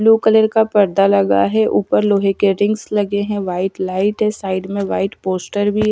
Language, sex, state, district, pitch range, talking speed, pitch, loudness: Hindi, female, Bihar, Kaimur, 185-210 Hz, 200 wpm, 200 Hz, -16 LUFS